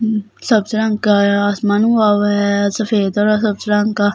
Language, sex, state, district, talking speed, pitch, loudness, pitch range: Hindi, female, Delhi, New Delhi, 215 wpm, 210 Hz, -15 LUFS, 205-215 Hz